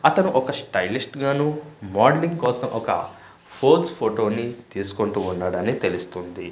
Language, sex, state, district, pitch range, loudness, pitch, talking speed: Telugu, male, Andhra Pradesh, Manyam, 100-145 Hz, -23 LUFS, 120 Hz, 110 wpm